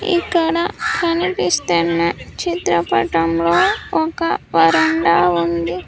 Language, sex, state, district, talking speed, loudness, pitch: Telugu, female, Andhra Pradesh, Sri Satya Sai, 50 wpm, -17 LUFS, 170 Hz